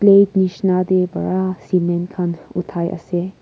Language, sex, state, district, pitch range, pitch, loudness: Nagamese, female, Nagaland, Kohima, 175-185 Hz, 180 Hz, -19 LUFS